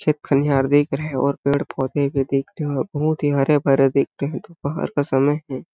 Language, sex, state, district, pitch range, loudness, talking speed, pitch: Hindi, male, Chhattisgarh, Balrampur, 135-145 Hz, -20 LUFS, 220 wpm, 140 Hz